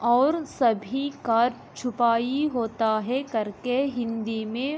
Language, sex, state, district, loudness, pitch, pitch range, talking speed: Hindi, female, Uttar Pradesh, Jalaun, -25 LUFS, 240 Hz, 225-265 Hz, 125 wpm